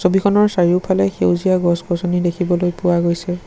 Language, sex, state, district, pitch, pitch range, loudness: Assamese, male, Assam, Sonitpur, 175 Hz, 175-185 Hz, -17 LUFS